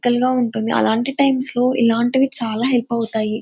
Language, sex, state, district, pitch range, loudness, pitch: Telugu, female, Andhra Pradesh, Anantapur, 230-255 Hz, -17 LUFS, 240 Hz